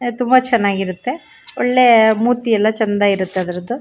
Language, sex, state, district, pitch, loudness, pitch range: Kannada, female, Karnataka, Shimoga, 230 Hz, -15 LUFS, 200-245 Hz